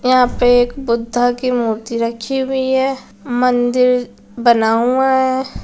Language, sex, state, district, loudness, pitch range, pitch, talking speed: Hindi, female, Bihar, Saran, -16 LUFS, 235-260 Hz, 245 Hz, 140 wpm